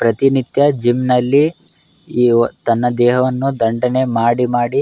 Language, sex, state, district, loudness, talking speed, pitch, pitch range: Kannada, male, Karnataka, Raichur, -15 LUFS, 125 wpm, 125 Hz, 120-135 Hz